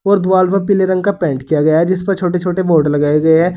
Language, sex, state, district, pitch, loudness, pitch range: Hindi, male, Uttar Pradesh, Saharanpur, 180 Hz, -14 LUFS, 160-190 Hz